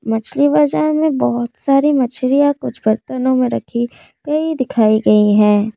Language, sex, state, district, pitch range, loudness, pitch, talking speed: Hindi, female, Assam, Kamrup Metropolitan, 220-285 Hz, -15 LUFS, 255 Hz, 145 wpm